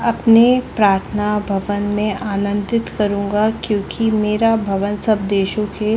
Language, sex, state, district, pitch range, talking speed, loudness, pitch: Hindi, female, Chhattisgarh, Balrampur, 200-220 Hz, 120 wpm, -17 LUFS, 210 Hz